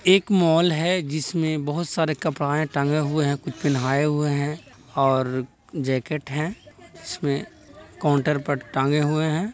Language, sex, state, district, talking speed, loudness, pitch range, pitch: Hindi, male, Bihar, Jahanabad, 145 wpm, -23 LUFS, 140-160 Hz, 150 Hz